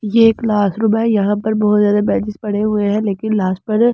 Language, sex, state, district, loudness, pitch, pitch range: Hindi, male, Delhi, New Delhi, -16 LUFS, 210 Hz, 205-220 Hz